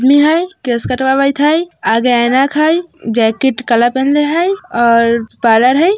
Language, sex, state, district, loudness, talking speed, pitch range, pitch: Bajjika, female, Bihar, Vaishali, -12 LUFS, 160 wpm, 235-310 Hz, 265 Hz